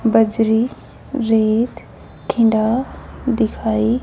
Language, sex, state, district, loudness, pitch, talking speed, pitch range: Hindi, female, Haryana, Charkhi Dadri, -18 LUFS, 225 Hz, 60 wpm, 220-240 Hz